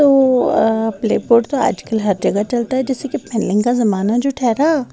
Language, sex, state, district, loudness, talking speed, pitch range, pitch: Hindi, female, Bihar, West Champaran, -16 LUFS, 195 wpm, 220-265 Hz, 240 Hz